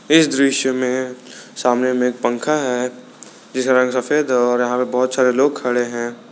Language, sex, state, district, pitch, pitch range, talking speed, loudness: Hindi, male, Jharkhand, Garhwa, 125 Hz, 125-130 Hz, 170 wpm, -18 LUFS